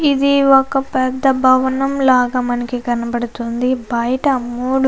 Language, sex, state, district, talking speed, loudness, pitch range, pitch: Telugu, female, Andhra Pradesh, Anantapur, 100 wpm, -16 LUFS, 245-270 Hz, 255 Hz